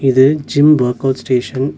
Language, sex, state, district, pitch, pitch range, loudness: Tamil, male, Tamil Nadu, Nilgiris, 135 Hz, 130-145 Hz, -13 LUFS